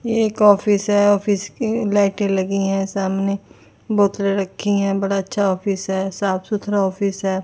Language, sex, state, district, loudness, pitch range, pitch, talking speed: Hindi, female, Chandigarh, Chandigarh, -19 LUFS, 195-205 Hz, 200 Hz, 170 wpm